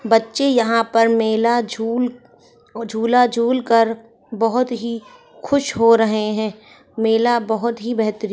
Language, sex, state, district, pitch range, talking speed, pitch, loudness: Hindi, female, Rajasthan, Churu, 225-240 Hz, 135 wpm, 230 Hz, -18 LUFS